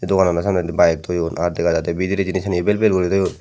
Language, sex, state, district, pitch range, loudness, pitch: Chakma, male, Tripura, Dhalai, 85-95 Hz, -19 LUFS, 90 Hz